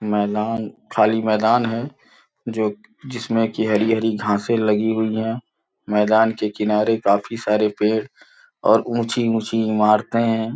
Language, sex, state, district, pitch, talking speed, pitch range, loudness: Hindi, male, Uttar Pradesh, Gorakhpur, 110 Hz, 130 wpm, 105-115 Hz, -20 LUFS